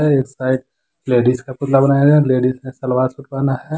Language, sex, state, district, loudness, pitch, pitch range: Hindi, male, Jharkhand, Deoghar, -16 LUFS, 130 Hz, 130-140 Hz